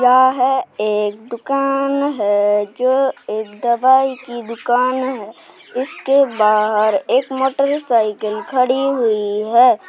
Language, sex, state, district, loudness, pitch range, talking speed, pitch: Hindi, male, Uttar Pradesh, Jalaun, -17 LUFS, 215-270 Hz, 105 wpm, 250 Hz